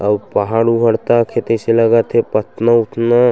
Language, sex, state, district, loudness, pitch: Chhattisgarhi, male, Chhattisgarh, Sukma, -14 LUFS, 115 Hz